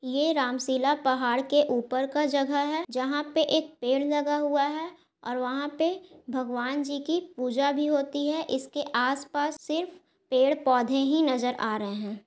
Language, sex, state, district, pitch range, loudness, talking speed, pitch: Hindi, female, Bihar, Gaya, 255-300 Hz, -27 LUFS, 180 wpm, 285 Hz